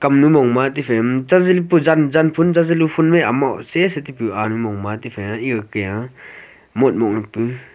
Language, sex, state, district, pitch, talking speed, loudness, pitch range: Wancho, male, Arunachal Pradesh, Longding, 130 Hz, 70 wpm, -17 LUFS, 115-160 Hz